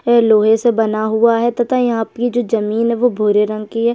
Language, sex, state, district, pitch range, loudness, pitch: Hindi, female, Chhattisgarh, Sukma, 220-240 Hz, -15 LUFS, 230 Hz